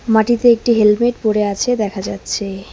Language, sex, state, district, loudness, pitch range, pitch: Bengali, female, West Bengal, Cooch Behar, -16 LUFS, 205-240 Hz, 220 Hz